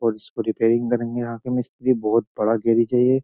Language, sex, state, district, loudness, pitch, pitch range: Hindi, male, Uttar Pradesh, Jyotiba Phule Nagar, -22 LUFS, 115 Hz, 115-125 Hz